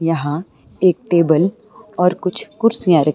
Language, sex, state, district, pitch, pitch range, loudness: Hindi, female, Himachal Pradesh, Shimla, 175 Hz, 155-200 Hz, -17 LUFS